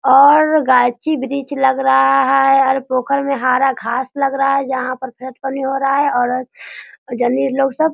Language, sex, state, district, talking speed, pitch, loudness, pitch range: Hindi, female, Bihar, Sitamarhi, 180 wpm, 270 Hz, -15 LUFS, 255-275 Hz